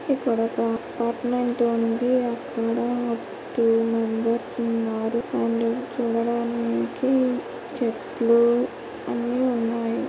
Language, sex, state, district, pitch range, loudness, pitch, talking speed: Telugu, female, Andhra Pradesh, Krishna, 230-245 Hz, -24 LUFS, 235 Hz, 65 wpm